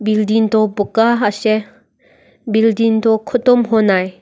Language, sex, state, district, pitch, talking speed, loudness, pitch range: Nagamese, female, Nagaland, Dimapur, 220 Hz, 115 wpm, -15 LUFS, 215-225 Hz